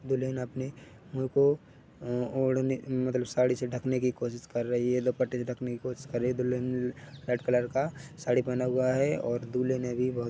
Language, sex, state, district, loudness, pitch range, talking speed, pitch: Hindi, male, Chhattisgarh, Rajnandgaon, -30 LUFS, 125-130 Hz, 205 wpm, 125 Hz